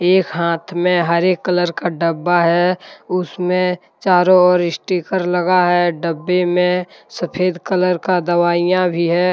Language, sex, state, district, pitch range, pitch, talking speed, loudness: Hindi, male, Jharkhand, Deoghar, 175-180 Hz, 180 Hz, 140 wpm, -16 LUFS